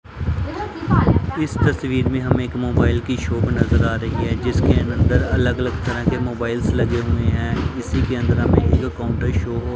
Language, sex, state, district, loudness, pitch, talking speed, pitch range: Hindi, male, Punjab, Pathankot, -20 LUFS, 115 Hz, 185 wpm, 100-125 Hz